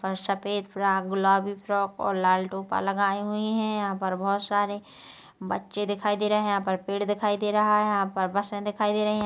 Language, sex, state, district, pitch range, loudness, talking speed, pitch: Hindi, female, Chhattisgarh, Kabirdham, 195-210 Hz, -26 LUFS, 220 wpm, 200 Hz